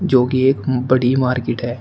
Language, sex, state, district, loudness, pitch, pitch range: Hindi, male, Uttar Pradesh, Shamli, -17 LUFS, 130 Hz, 125-130 Hz